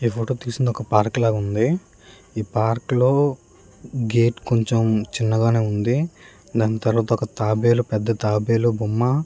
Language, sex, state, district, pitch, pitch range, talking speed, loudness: Telugu, male, Andhra Pradesh, Srikakulam, 115 Hz, 110-120 Hz, 135 wpm, -21 LUFS